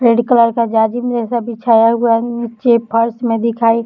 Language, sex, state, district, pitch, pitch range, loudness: Hindi, female, Uttar Pradesh, Deoria, 235 Hz, 230-235 Hz, -14 LUFS